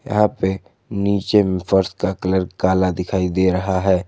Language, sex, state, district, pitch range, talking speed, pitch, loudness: Hindi, male, Jharkhand, Garhwa, 95-100 Hz, 175 wpm, 95 Hz, -19 LUFS